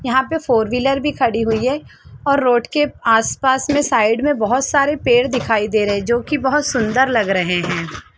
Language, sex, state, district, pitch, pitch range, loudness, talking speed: Hindi, female, Bihar, Sitamarhi, 250 Hz, 225-280 Hz, -17 LUFS, 215 wpm